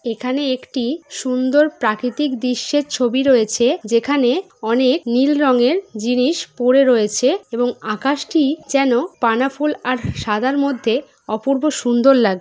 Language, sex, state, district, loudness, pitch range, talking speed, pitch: Bengali, female, West Bengal, Jhargram, -17 LUFS, 240-280 Hz, 125 wpm, 255 Hz